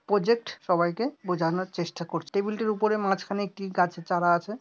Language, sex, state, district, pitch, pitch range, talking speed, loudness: Bengali, male, West Bengal, Dakshin Dinajpur, 195 Hz, 175-215 Hz, 170 wpm, -27 LUFS